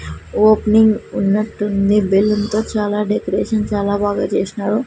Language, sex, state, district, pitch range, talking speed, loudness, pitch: Telugu, female, Andhra Pradesh, Sri Satya Sai, 200-215 Hz, 100 wpm, -16 LUFS, 210 Hz